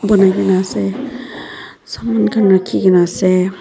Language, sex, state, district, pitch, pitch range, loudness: Nagamese, female, Nagaland, Dimapur, 190 Hz, 185-205 Hz, -14 LUFS